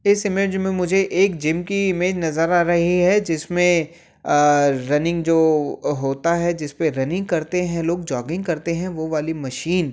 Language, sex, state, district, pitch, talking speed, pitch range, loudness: Hindi, male, Uttar Pradesh, Jyotiba Phule Nagar, 170 Hz, 180 wpm, 155-180 Hz, -20 LUFS